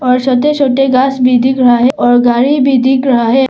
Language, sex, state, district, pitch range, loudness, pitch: Hindi, female, Arunachal Pradesh, Papum Pare, 250-270 Hz, -10 LUFS, 260 Hz